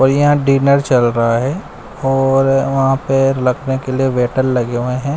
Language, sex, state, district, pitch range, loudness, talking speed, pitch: Hindi, male, Bihar, West Champaran, 125-135 Hz, -15 LUFS, 185 wpm, 135 Hz